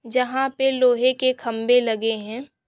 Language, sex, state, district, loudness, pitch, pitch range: Hindi, female, Chhattisgarh, Korba, -21 LUFS, 250 Hz, 230-260 Hz